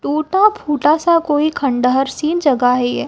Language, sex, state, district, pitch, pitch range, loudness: Hindi, female, Chhattisgarh, Raipur, 295 Hz, 270-330 Hz, -15 LUFS